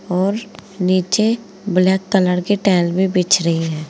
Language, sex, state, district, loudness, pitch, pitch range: Hindi, female, Uttar Pradesh, Saharanpur, -17 LUFS, 185 Hz, 180-195 Hz